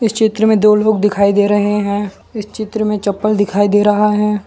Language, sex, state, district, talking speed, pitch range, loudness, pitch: Hindi, male, Gujarat, Valsad, 215 wpm, 205-215 Hz, -14 LUFS, 210 Hz